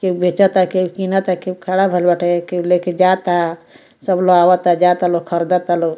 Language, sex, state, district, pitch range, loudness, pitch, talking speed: Bhojpuri, female, Bihar, Muzaffarpur, 175-185 Hz, -15 LUFS, 180 Hz, 170 wpm